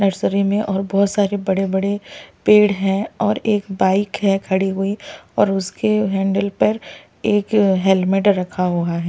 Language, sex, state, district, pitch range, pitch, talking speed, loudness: Hindi, male, Delhi, New Delhi, 190-205 Hz, 195 Hz, 165 wpm, -18 LUFS